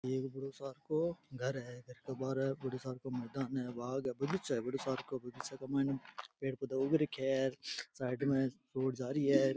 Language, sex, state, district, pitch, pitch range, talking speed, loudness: Rajasthani, male, Rajasthan, Churu, 135 Hz, 130-135 Hz, 220 wpm, -38 LUFS